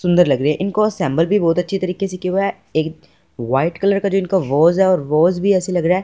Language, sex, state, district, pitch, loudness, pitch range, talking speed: Hindi, male, Punjab, Fazilka, 180 Hz, -17 LUFS, 165-195 Hz, 270 wpm